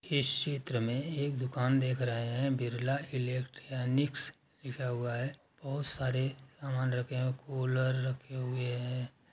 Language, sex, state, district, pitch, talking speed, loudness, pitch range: Hindi, male, Uttar Pradesh, Etah, 130 Hz, 140 wpm, -34 LUFS, 125-140 Hz